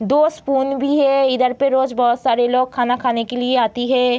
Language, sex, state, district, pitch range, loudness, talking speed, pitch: Hindi, female, Bihar, Kishanganj, 245-275 Hz, -17 LUFS, 215 wpm, 255 Hz